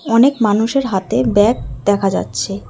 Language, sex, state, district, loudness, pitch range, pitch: Bengali, female, West Bengal, Alipurduar, -15 LUFS, 190-235 Hz, 210 Hz